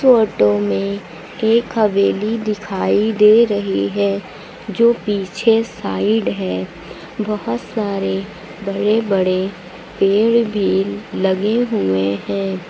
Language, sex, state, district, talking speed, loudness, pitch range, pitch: Hindi, female, Uttar Pradesh, Lucknow, 100 wpm, -17 LUFS, 185-215 Hz, 200 Hz